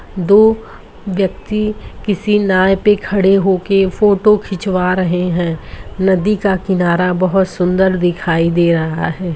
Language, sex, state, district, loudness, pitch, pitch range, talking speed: Bhojpuri, male, Uttar Pradesh, Gorakhpur, -14 LUFS, 190 Hz, 180-200 Hz, 130 wpm